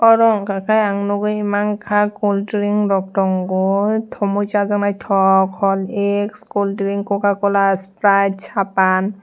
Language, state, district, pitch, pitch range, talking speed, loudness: Kokborok, Tripura, West Tripura, 200 Hz, 195-205 Hz, 115 wpm, -17 LUFS